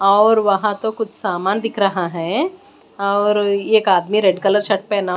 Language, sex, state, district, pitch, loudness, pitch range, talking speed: Hindi, female, Punjab, Pathankot, 205 Hz, -17 LUFS, 195-215 Hz, 175 wpm